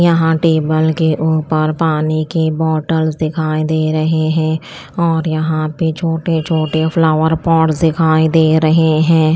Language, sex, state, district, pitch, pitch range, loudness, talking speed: Hindi, female, Chandigarh, Chandigarh, 160 Hz, 155-160 Hz, -14 LUFS, 135 wpm